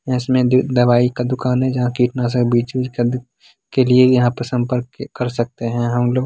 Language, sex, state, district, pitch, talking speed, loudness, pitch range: Angika, male, Bihar, Begusarai, 125 Hz, 175 wpm, -17 LUFS, 120-130 Hz